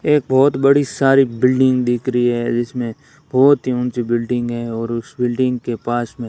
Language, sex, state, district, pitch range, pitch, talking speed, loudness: Hindi, male, Rajasthan, Bikaner, 120-135 Hz, 125 Hz, 200 wpm, -17 LUFS